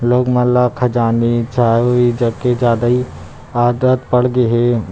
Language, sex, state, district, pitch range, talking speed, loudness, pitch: Chhattisgarhi, male, Chhattisgarh, Rajnandgaon, 120-125 Hz, 170 wpm, -15 LUFS, 120 Hz